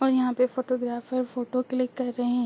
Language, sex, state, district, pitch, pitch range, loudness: Hindi, female, Uttar Pradesh, Ghazipur, 255 Hz, 245-255 Hz, -27 LUFS